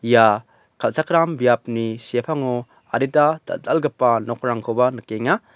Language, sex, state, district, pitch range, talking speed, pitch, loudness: Garo, male, Meghalaya, West Garo Hills, 115-135 Hz, 85 wpm, 120 Hz, -20 LUFS